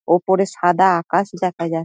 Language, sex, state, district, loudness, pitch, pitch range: Bengali, female, West Bengal, Dakshin Dinajpur, -18 LUFS, 180 Hz, 170-190 Hz